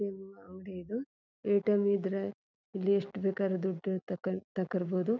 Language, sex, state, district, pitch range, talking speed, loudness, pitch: Kannada, female, Karnataka, Chamarajanagar, 185-200 Hz, 125 wpm, -33 LUFS, 195 Hz